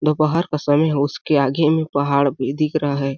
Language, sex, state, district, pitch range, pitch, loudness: Hindi, male, Chhattisgarh, Balrampur, 140-155 Hz, 145 Hz, -19 LUFS